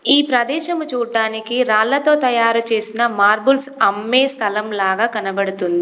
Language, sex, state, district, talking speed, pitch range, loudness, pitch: Telugu, female, Telangana, Komaram Bheem, 115 wpm, 210-265 Hz, -16 LUFS, 230 Hz